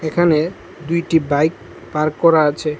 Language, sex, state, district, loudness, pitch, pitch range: Bengali, male, Tripura, West Tripura, -17 LUFS, 155 Hz, 150-165 Hz